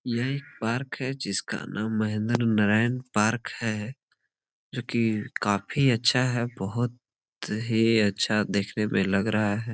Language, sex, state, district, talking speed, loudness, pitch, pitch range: Hindi, male, Jharkhand, Sahebganj, 140 wpm, -26 LUFS, 115 Hz, 105-120 Hz